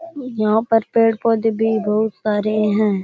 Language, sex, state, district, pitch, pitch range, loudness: Rajasthani, male, Rajasthan, Churu, 220 Hz, 215-225 Hz, -18 LUFS